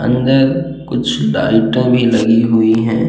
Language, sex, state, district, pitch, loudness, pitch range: Hindi, male, Uttar Pradesh, Jalaun, 115 Hz, -13 LUFS, 110-125 Hz